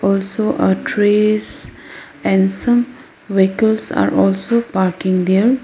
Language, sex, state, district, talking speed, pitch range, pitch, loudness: English, female, Arunachal Pradesh, Lower Dibang Valley, 105 wpm, 190-235 Hz, 205 Hz, -16 LUFS